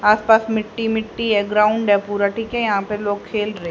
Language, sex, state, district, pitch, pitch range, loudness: Hindi, female, Haryana, Jhajjar, 210 Hz, 205-220 Hz, -19 LUFS